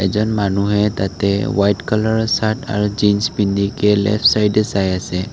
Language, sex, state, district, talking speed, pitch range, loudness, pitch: Assamese, male, Assam, Kamrup Metropolitan, 155 wpm, 100-110 Hz, -17 LUFS, 105 Hz